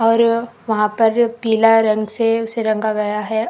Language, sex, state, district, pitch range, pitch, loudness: Hindi, female, Karnataka, Koppal, 215-230 Hz, 225 Hz, -17 LUFS